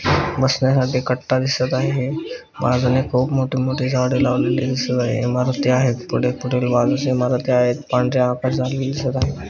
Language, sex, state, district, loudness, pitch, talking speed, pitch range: Marathi, male, Maharashtra, Chandrapur, -19 LUFS, 130 Hz, 145 wpm, 125-130 Hz